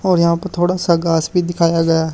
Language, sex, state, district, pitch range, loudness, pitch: Hindi, male, Haryana, Charkhi Dadri, 165-180 Hz, -16 LUFS, 170 Hz